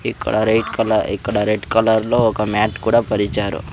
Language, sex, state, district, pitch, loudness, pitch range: Telugu, male, Andhra Pradesh, Sri Satya Sai, 105 Hz, -18 LUFS, 105-110 Hz